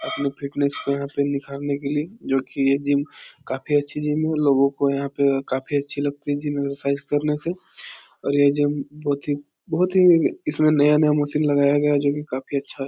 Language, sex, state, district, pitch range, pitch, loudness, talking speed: Hindi, male, Bihar, Supaul, 140-150 Hz, 145 Hz, -22 LUFS, 195 wpm